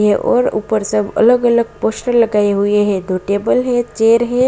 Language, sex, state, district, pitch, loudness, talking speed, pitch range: Bhojpuri, female, Bihar, Saran, 220 Hz, -14 LUFS, 200 wpm, 205-240 Hz